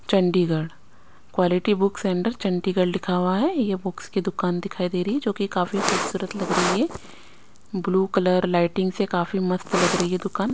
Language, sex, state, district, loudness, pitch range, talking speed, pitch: Hindi, female, Chandigarh, Chandigarh, -23 LUFS, 180-195 Hz, 190 wpm, 190 Hz